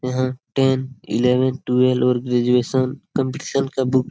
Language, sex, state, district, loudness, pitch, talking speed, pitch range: Hindi, male, Jharkhand, Sahebganj, -20 LUFS, 130 Hz, 145 wpm, 125-130 Hz